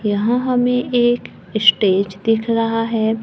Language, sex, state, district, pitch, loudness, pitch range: Hindi, female, Maharashtra, Gondia, 225 Hz, -17 LUFS, 210-240 Hz